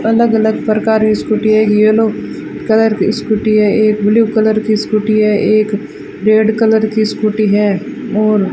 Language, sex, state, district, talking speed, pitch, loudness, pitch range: Hindi, female, Rajasthan, Bikaner, 175 wpm, 215 Hz, -12 LUFS, 215-220 Hz